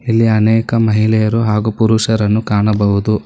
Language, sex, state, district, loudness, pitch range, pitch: Kannada, male, Karnataka, Bangalore, -13 LUFS, 105-110 Hz, 110 Hz